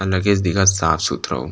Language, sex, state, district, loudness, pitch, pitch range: Chhattisgarhi, male, Chhattisgarh, Rajnandgaon, -18 LUFS, 95 Hz, 90-95 Hz